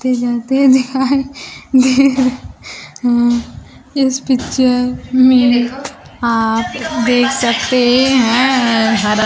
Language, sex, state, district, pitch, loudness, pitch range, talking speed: Hindi, female, Bihar, Kaimur, 255 Hz, -13 LUFS, 240-265 Hz, 65 wpm